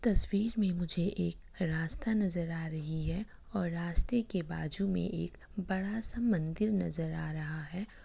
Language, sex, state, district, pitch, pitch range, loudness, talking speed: Hindi, female, Bihar, Kishanganj, 180 Hz, 160-205 Hz, -34 LUFS, 155 wpm